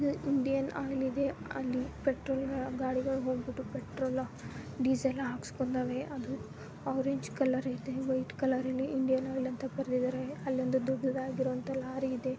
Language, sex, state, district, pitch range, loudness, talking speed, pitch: Kannada, female, Karnataka, Bijapur, 260-270 Hz, -34 LUFS, 130 wpm, 260 Hz